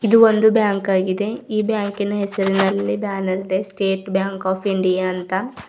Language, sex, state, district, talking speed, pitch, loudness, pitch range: Kannada, female, Karnataka, Bidar, 150 wpm, 195 Hz, -19 LUFS, 190-210 Hz